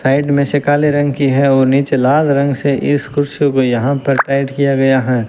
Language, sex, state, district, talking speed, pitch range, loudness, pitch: Hindi, male, Rajasthan, Bikaner, 240 wpm, 135-145 Hz, -14 LUFS, 140 Hz